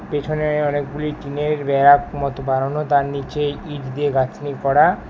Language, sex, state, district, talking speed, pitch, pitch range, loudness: Bengali, male, West Bengal, Alipurduar, 140 wpm, 145 Hz, 140-150 Hz, -19 LUFS